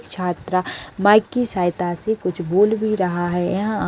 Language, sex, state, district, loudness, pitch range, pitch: Hindi, female, Uttar Pradesh, Deoria, -20 LUFS, 180-215 Hz, 185 Hz